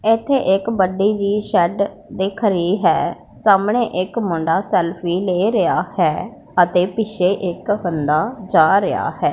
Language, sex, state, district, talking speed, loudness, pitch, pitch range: Punjabi, female, Punjab, Pathankot, 140 wpm, -18 LUFS, 195 Hz, 180-210 Hz